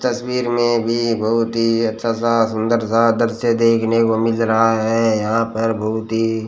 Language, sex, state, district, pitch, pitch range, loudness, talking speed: Hindi, male, Rajasthan, Bikaner, 115 Hz, 110-115 Hz, -17 LUFS, 175 wpm